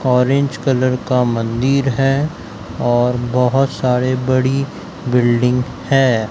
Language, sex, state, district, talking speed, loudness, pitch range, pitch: Hindi, male, Madhya Pradesh, Dhar, 105 wpm, -16 LUFS, 120-135 Hz, 125 Hz